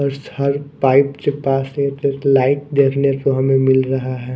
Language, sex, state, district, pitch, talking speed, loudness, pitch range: Hindi, male, Odisha, Nuapada, 135 Hz, 190 wpm, -17 LUFS, 135-140 Hz